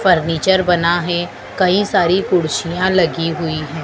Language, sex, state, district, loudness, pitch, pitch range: Hindi, female, Madhya Pradesh, Dhar, -16 LUFS, 175 Hz, 165-185 Hz